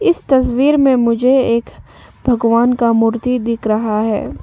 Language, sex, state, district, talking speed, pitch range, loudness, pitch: Hindi, female, Arunachal Pradesh, Papum Pare, 150 wpm, 230-260 Hz, -14 LUFS, 240 Hz